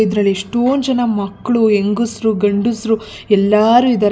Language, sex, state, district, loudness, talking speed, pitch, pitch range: Kannada, female, Karnataka, Bangalore, -15 LUFS, 145 wpm, 220 Hz, 205-235 Hz